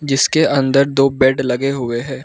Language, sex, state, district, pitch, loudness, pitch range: Hindi, male, Arunachal Pradesh, Lower Dibang Valley, 135 Hz, -15 LUFS, 130-140 Hz